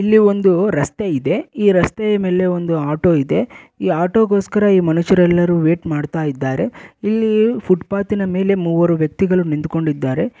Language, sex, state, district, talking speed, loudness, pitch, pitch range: Kannada, male, Karnataka, Bellary, 150 wpm, -16 LUFS, 185 Hz, 165-205 Hz